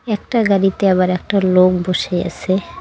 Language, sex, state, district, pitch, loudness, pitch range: Bengali, female, West Bengal, Cooch Behar, 190 Hz, -16 LUFS, 185-200 Hz